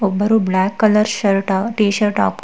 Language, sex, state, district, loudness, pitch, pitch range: Kannada, female, Karnataka, Bangalore, -16 LUFS, 205 Hz, 190-210 Hz